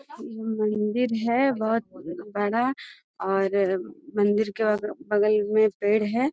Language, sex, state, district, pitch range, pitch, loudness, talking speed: Magahi, female, Bihar, Gaya, 210-235 Hz, 215 Hz, -25 LUFS, 115 wpm